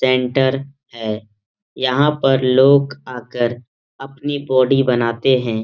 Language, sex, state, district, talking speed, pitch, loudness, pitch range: Hindi, male, Bihar, Lakhisarai, 105 wpm, 130 Hz, -17 LUFS, 120-135 Hz